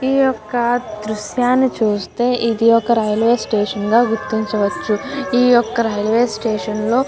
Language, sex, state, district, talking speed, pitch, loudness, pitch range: Telugu, female, Andhra Pradesh, Guntur, 120 wpm, 230 Hz, -17 LUFS, 215-245 Hz